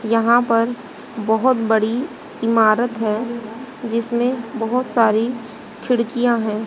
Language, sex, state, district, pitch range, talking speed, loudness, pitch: Hindi, female, Haryana, Rohtak, 225-245 Hz, 100 wpm, -18 LUFS, 230 Hz